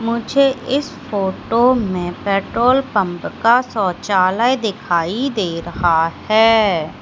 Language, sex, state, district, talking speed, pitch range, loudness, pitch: Hindi, female, Madhya Pradesh, Katni, 100 wpm, 185-245 Hz, -17 LUFS, 215 Hz